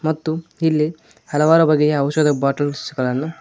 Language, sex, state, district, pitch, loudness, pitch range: Kannada, male, Karnataka, Koppal, 150 Hz, -18 LUFS, 145-160 Hz